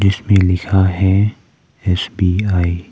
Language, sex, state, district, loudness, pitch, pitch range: Hindi, male, Arunachal Pradesh, Papum Pare, -16 LUFS, 95 Hz, 90-100 Hz